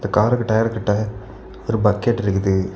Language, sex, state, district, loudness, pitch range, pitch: Tamil, male, Tamil Nadu, Kanyakumari, -19 LUFS, 95-110 Hz, 105 Hz